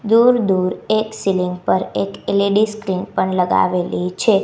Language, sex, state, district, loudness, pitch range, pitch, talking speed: Gujarati, female, Gujarat, Gandhinagar, -18 LUFS, 180-215 Hz, 190 Hz, 150 wpm